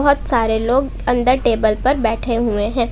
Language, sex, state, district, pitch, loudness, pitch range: Hindi, female, Jharkhand, Palamu, 235 Hz, -17 LUFS, 220-260 Hz